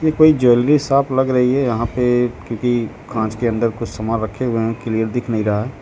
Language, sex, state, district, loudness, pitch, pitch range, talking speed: Hindi, female, Uttar Pradesh, Lucknow, -18 LUFS, 120 Hz, 110-125 Hz, 235 wpm